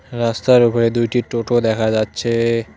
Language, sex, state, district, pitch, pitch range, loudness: Bengali, male, West Bengal, Cooch Behar, 115 Hz, 115-120 Hz, -17 LUFS